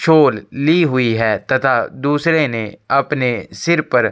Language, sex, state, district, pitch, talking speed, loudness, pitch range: Hindi, male, Chhattisgarh, Korba, 140 Hz, 160 wpm, -16 LUFS, 115-155 Hz